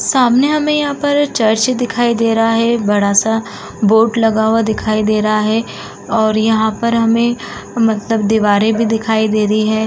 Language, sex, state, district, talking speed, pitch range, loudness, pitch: Hindi, female, Uttar Pradesh, Budaun, 165 wpm, 215-235 Hz, -14 LUFS, 225 Hz